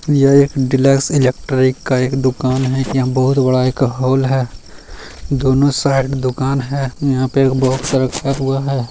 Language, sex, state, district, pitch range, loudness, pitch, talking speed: Hindi, male, Bihar, Jamui, 130-135 Hz, -15 LUFS, 130 Hz, 170 wpm